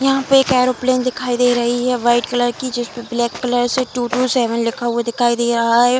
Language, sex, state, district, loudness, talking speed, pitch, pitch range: Hindi, female, Bihar, Kishanganj, -17 LUFS, 230 wpm, 245 Hz, 240-255 Hz